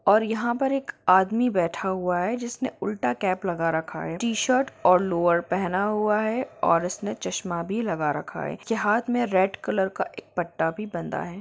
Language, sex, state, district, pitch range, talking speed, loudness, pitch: Hindi, female, Jharkhand, Jamtara, 175-225 Hz, 205 wpm, -25 LUFS, 190 Hz